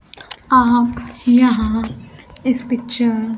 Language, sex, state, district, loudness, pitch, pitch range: Hindi, female, Bihar, Kaimur, -16 LUFS, 240 Hz, 225-250 Hz